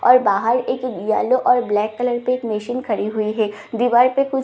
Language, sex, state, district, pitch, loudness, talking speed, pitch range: Hindi, female, Bihar, Katihar, 245 Hz, -19 LUFS, 230 wpm, 215-250 Hz